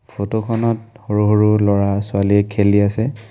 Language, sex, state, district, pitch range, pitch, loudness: Assamese, male, Assam, Kamrup Metropolitan, 100-110 Hz, 105 Hz, -17 LUFS